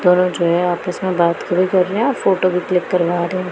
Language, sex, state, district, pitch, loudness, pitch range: Hindi, female, Punjab, Pathankot, 180 Hz, -17 LUFS, 175-185 Hz